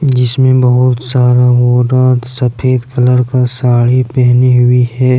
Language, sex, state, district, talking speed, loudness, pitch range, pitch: Hindi, male, Jharkhand, Deoghar, 125 wpm, -10 LUFS, 125-130 Hz, 125 Hz